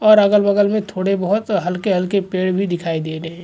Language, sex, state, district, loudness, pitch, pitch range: Hindi, male, Goa, North and South Goa, -18 LUFS, 195 Hz, 180-205 Hz